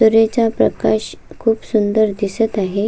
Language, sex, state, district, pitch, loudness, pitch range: Marathi, female, Maharashtra, Solapur, 220 Hz, -17 LUFS, 205-225 Hz